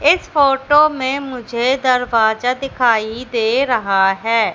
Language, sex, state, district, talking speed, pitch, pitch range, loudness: Hindi, female, Madhya Pradesh, Katni, 120 wpm, 250 Hz, 225-270 Hz, -16 LUFS